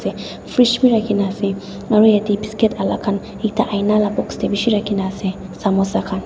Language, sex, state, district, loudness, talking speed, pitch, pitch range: Nagamese, female, Nagaland, Dimapur, -18 LUFS, 170 wpm, 205 Hz, 195-215 Hz